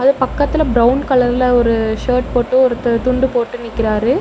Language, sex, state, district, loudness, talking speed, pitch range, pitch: Tamil, female, Tamil Nadu, Namakkal, -15 LUFS, 140 wpm, 235-260 Hz, 250 Hz